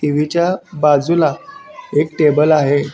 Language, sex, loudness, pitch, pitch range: Marathi, male, -15 LUFS, 155 Hz, 150-175 Hz